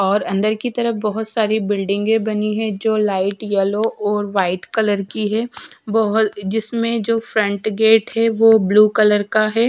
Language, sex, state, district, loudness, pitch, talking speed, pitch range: Hindi, female, Chhattisgarh, Raipur, -18 LUFS, 215 Hz, 175 wpm, 205-225 Hz